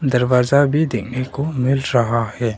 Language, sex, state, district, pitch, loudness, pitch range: Hindi, male, Arunachal Pradesh, Longding, 125 Hz, -18 LUFS, 120-140 Hz